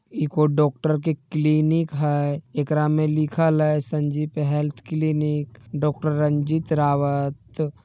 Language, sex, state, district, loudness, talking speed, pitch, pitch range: Magahi, male, Bihar, Jamui, -22 LUFS, 115 wpm, 150 Hz, 145-155 Hz